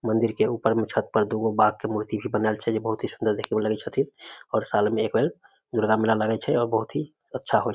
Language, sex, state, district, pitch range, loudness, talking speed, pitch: Maithili, male, Bihar, Samastipur, 110-115 Hz, -25 LUFS, 280 wpm, 110 Hz